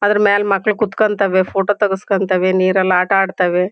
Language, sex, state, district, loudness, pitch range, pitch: Kannada, female, Karnataka, Shimoga, -15 LUFS, 185-205 Hz, 195 Hz